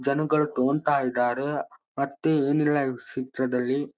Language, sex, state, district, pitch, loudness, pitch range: Kannada, male, Karnataka, Dharwad, 140 Hz, -25 LUFS, 130-150 Hz